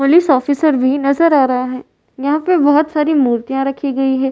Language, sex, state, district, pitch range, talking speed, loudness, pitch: Hindi, female, Uttar Pradesh, Varanasi, 265-300 Hz, 210 wpm, -14 LUFS, 275 Hz